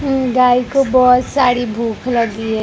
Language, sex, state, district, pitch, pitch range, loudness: Hindi, female, Gujarat, Gandhinagar, 250 Hz, 230-255 Hz, -14 LUFS